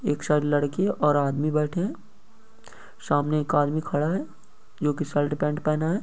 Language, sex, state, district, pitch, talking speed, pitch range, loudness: Hindi, male, Bihar, East Champaran, 150 Hz, 180 wpm, 145-155 Hz, -25 LUFS